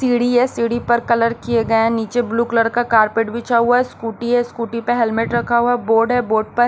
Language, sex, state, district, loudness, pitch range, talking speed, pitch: Hindi, female, Maharashtra, Washim, -17 LUFS, 230-240 Hz, 250 wpm, 235 Hz